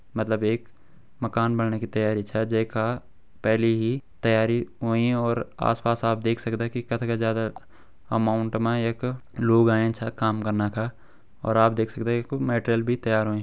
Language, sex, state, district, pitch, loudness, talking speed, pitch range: Garhwali, male, Uttarakhand, Uttarkashi, 115 Hz, -25 LUFS, 180 wpm, 110-115 Hz